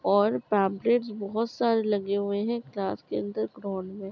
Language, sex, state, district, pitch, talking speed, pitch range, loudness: Hindi, female, Bihar, Madhepura, 200 Hz, 175 wpm, 195-225 Hz, -28 LUFS